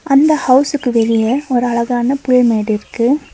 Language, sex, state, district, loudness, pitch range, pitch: Tamil, female, Tamil Nadu, Nilgiris, -14 LUFS, 235-275 Hz, 250 Hz